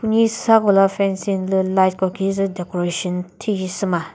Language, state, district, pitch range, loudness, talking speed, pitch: Chakhesang, Nagaland, Dimapur, 185-200 Hz, -19 LUFS, 160 wpm, 190 Hz